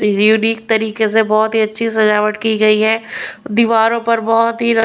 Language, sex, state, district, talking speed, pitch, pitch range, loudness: Hindi, female, Punjab, Pathankot, 175 wpm, 220 Hz, 215-225 Hz, -14 LUFS